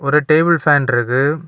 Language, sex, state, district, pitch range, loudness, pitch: Tamil, male, Tamil Nadu, Kanyakumari, 140-155 Hz, -14 LUFS, 150 Hz